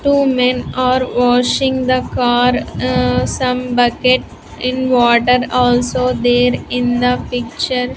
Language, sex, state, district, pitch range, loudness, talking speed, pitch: English, female, Andhra Pradesh, Sri Satya Sai, 245-255 Hz, -15 LUFS, 115 wpm, 250 Hz